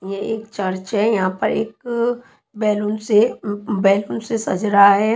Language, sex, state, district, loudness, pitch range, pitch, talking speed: Hindi, female, Chhattisgarh, Raipur, -19 LUFS, 200-225 Hz, 210 Hz, 165 wpm